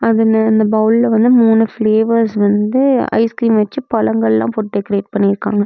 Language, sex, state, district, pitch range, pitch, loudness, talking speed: Tamil, female, Tamil Nadu, Namakkal, 205-225 Hz, 220 Hz, -13 LUFS, 150 wpm